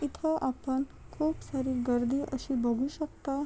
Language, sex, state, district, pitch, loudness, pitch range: Marathi, female, Maharashtra, Chandrapur, 270 Hz, -32 LUFS, 260-290 Hz